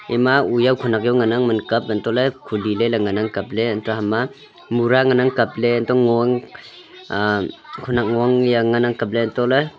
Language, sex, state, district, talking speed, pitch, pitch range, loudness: Wancho, male, Arunachal Pradesh, Longding, 190 wpm, 120 Hz, 110-125 Hz, -19 LUFS